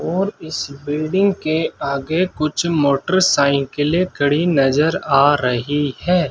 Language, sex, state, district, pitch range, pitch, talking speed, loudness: Hindi, male, Rajasthan, Bikaner, 140-175 Hz, 155 Hz, 115 wpm, -18 LUFS